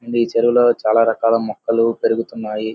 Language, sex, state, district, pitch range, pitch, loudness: Telugu, male, Andhra Pradesh, Guntur, 110-115 Hz, 115 Hz, -17 LUFS